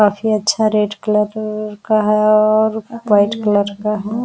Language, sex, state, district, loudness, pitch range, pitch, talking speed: Hindi, female, Bihar, Araria, -16 LUFS, 210-215 Hz, 215 Hz, 125 wpm